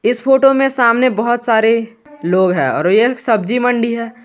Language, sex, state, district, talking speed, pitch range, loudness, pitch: Hindi, male, Jharkhand, Garhwa, 185 wpm, 225-250 Hz, -14 LUFS, 235 Hz